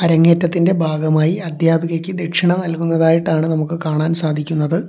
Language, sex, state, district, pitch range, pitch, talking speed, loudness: Malayalam, male, Kerala, Kollam, 160-170 Hz, 165 Hz, 100 wpm, -16 LUFS